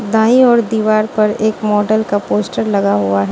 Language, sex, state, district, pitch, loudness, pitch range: Hindi, female, Manipur, Imphal West, 215 Hz, -14 LUFS, 205-220 Hz